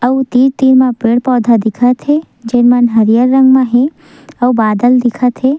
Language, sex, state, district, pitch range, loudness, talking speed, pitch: Chhattisgarhi, female, Chhattisgarh, Sukma, 240-260 Hz, -10 LUFS, 185 wpm, 250 Hz